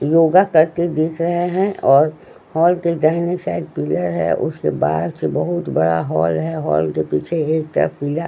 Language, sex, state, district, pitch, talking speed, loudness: Hindi, female, Bihar, Patna, 155 Hz, 175 wpm, -18 LUFS